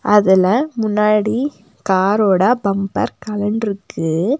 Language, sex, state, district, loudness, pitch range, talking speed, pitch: Tamil, female, Tamil Nadu, Nilgiris, -17 LUFS, 195-220 Hz, 80 wpm, 210 Hz